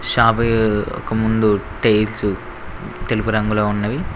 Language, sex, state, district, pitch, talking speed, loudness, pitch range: Telugu, male, Telangana, Mahabubabad, 110 Hz, 100 wpm, -18 LUFS, 105-110 Hz